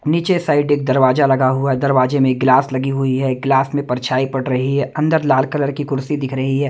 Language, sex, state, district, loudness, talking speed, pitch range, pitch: Hindi, male, Haryana, Jhajjar, -17 LUFS, 230 wpm, 130-145 Hz, 135 Hz